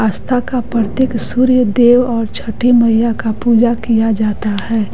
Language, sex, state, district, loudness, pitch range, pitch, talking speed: Hindi, female, Bihar, West Champaran, -13 LUFS, 225-245 Hz, 230 Hz, 160 wpm